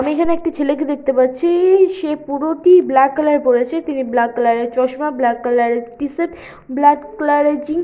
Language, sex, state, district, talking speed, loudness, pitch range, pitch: Bengali, female, West Bengal, Purulia, 220 wpm, -16 LUFS, 255-320 Hz, 290 Hz